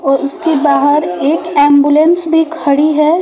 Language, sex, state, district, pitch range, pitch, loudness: Hindi, female, Bihar, West Champaran, 285-325 Hz, 300 Hz, -11 LUFS